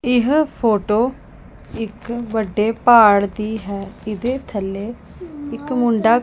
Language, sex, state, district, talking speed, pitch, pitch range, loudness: Punjabi, female, Punjab, Pathankot, 115 wpm, 225 Hz, 210-245 Hz, -18 LUFS